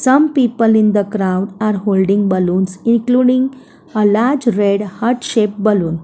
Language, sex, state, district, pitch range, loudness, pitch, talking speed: English, female, Gujarat, Valsad, 200-240 Hz, -15 LUFS, 215 Hz, 150 wpm